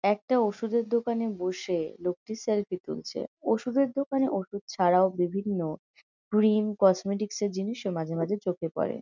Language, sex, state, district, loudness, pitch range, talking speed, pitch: Bengali, female, West Bengal, Kolkata, -28 LUFS, 180-225 Hz, 125 wpm, 205 Hz